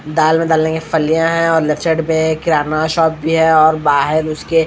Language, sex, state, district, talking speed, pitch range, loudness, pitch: Hindi, male, Bihar, Katihar, 205 wpm, 155-165 Hz, -14 LUFS, 160 Hz